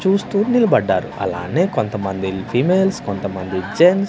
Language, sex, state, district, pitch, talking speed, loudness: Telugu, male, Andhra Pradesh, Manyam, 130 Hz, 115 wpm, -18 LUFS